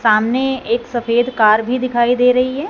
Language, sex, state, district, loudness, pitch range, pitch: Hindi, female, Punjab, Fazilka, -15 LUFS, 235-255 Hz, 240 Hz